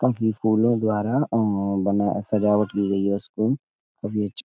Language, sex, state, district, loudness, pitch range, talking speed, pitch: Hindi, male, Uttar Pradesh, Etah, -23 LUFS, 100-110 Hz, 175 wpm, 105 Hz